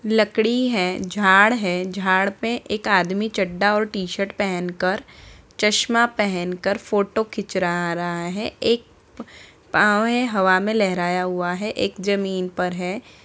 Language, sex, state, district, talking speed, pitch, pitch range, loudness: Hindi, female, Bihar, Samastipur, 150 wpm, 195 Hz, 180-215 Hz, -21 LUFS